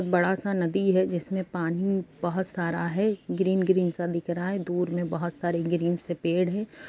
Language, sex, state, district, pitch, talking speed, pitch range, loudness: Hindi, female, Bihar, East Champaran, 180 Hz, 200 wpm, 175-190 Hz, -27 LUFS